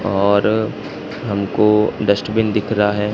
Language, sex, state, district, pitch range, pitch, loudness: Hindi, male, Madhya Pradesh, Katni, 100-110 Hz, 105 Hz, -17 LUFS